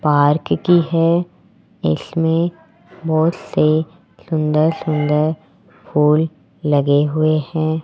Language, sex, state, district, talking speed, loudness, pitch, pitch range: Hindi, male, Rajasthan, Jaipur, 90 wpm, -17 LUFS, 155 Hz, 150-165 Hz